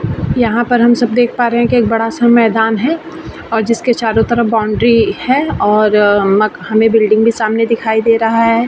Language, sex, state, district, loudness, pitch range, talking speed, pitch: Hindi, female, Bihar, Vaishali, -12 LUFS, 220-235 Hz, 200 wpm, 230 Hz